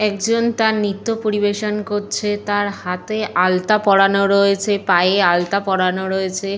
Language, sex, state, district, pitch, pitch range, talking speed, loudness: Bengali, female, Jharkhand, Jamtara, 200 Hz, 190-210 Hz, 130 wpm, -17 LUFS